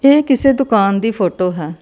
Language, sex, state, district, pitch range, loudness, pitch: Punjabi, female, Karnataka, Bangalore, 185-270 Hz, -14 LUFS, 220 Hz